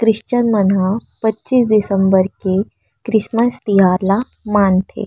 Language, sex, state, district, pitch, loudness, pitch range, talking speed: Chhattisgarhi, female, Chhattisgarh, Rajnandgaon, 210 Hz, -15 LUFS, 195-225 Hz, 105 wpm